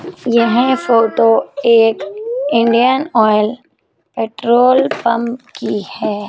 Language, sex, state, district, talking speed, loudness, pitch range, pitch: Hindi, female, Chandigarh, Chandigarh, 85 wpm, -14 LUFS, 220-245 Hz, 235 Hz